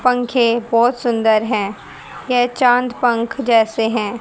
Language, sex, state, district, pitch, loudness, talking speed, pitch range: Hindi, female, Haryana, Charkhi Dadri, 235 Hz, -16 LUFS, 130 wpm, 225-245 Hz